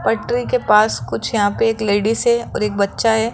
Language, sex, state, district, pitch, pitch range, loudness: Hindi, male, Rajasthan, Jaipur, 220 Hz, 205-230 Hz, -17 LUFS